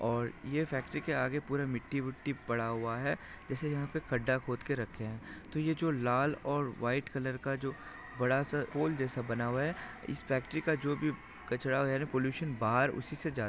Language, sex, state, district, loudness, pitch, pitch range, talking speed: Hindi, male, Maharashtra, Solapur, -35 LUFS, 135 Hz, 125-145 Hz, 210 wpm